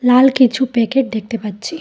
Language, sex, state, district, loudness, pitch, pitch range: Bengali, female, Tripura, Dhalai, -15 LUFS, 250 Hz, 225-260 Hz